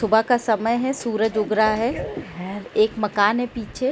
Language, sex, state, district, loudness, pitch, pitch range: Hindi, female, Bihar, Jahanabad, -22 LUFS, 220 Hz, 215-235 Hz